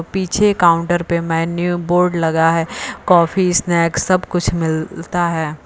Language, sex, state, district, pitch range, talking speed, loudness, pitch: Hindi, female, Uttar Pradesh, Lucknow, 165-180 Hz, 140 wpm, -16 LUFS, 170 Hz